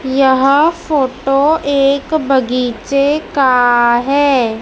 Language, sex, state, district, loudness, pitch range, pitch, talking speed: Hindi, male, Madhya Pradesh, Dhar, -13 LUFS, 255-285 Hz, 275 Hz, 80 wpm